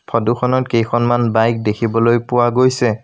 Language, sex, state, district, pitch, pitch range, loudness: Assamese, male, Assam, Sonitpur, 120 Hz, 115-120 Hz, -15 LUFS